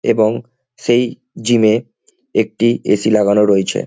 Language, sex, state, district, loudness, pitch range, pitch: Bengali, male, West Bengal, Jhargram, -15 LUFS, 110-120 Hz, 110 Hz